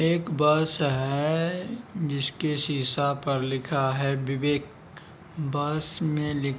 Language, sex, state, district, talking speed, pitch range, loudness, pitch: Hindi, male, Bihar, Araria, 110 wpm, 140-160 Hz, -26 LUFS, 145 Hz